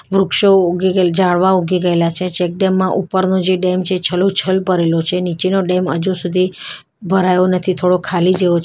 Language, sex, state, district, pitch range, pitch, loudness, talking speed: Gujarati, female, Gujarat, Valsad, 180-190 Hz, 185 Hz, -15 LUFS, 185 wpm